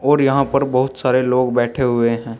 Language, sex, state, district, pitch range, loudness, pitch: Hindi, male, Uttar Pradesh, Saharanpur, 120-135 Hz, -17 LUFS, 130 Hz